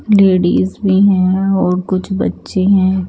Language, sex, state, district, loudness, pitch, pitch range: Hindi, female, Chandigarh, Chandigarh, -13 LUFS, 190 Hz, 185-195 Hz